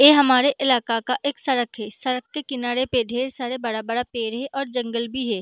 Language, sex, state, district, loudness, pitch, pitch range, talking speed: Hindi, female, Chhattisgarh, Balrampur, -23 LUFS, 250 Hz, 235-265 Hz, 230 wpm